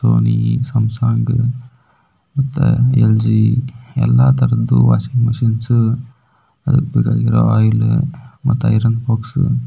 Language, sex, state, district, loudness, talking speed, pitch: Kannada, male, Karnataka, Belgaum, -15 LUFS, 75 wpm, 115 Hz